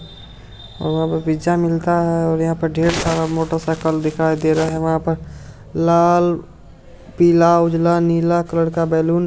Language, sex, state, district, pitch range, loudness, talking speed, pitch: Hindi, male, Bihar, Supaul, 160-170 Hz, -17 LUFS, 170 wpm, 165 Hz